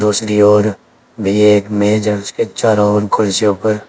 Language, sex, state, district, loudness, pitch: Hindi, male, Uttar Pradesh, Saharanpur, -13 LUFS, 105 Hz